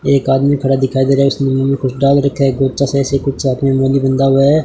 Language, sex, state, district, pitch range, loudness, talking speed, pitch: Hindi, male, Rajasthan, Bikaner, 135-140 Hz, -13 LUFS, 105 wpm, 135 Hz